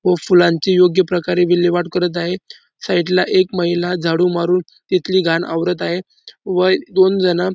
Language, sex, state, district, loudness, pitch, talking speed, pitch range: Marathi, male, Maharashtra, Dhule, -16 LUFS, 180 Hz, 165 wpm, 175-185 Hz